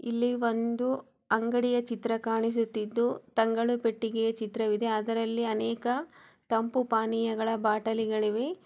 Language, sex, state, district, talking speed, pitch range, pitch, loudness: Kannada, female, Karnataka, Chamarajanagar, 95 wpm, 225-235 Hz, 230 Hz, -29 LUFS